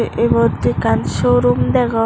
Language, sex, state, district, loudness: Chakma, female, Tripura, West Tripura, -15 LUFS